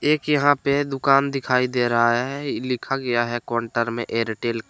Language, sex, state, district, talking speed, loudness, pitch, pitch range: Hindi, male, Jharkhand, Deoghar, 205 wpm, -22 LUFS, 125 Hz, 120-140 Hz